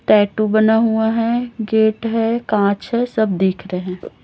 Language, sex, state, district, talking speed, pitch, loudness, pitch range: Hindi, female, Chhattisgarh, Raipur, 170 wpm, 220 Hz, -17 LUFS, 205-230 Hz